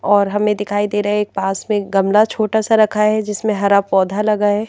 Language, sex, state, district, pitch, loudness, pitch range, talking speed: Hindi, female, Madhya Pradesh, Bhopal, 210 Hz, -16 LUFS, 200-215 Hz, 245 wpm